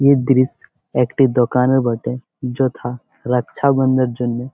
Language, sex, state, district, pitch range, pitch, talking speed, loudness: Bengali, male, West Bengal, Jalpaiguri, 125-135 Hz, 125 Hz, 130 wpm, -18 LUFS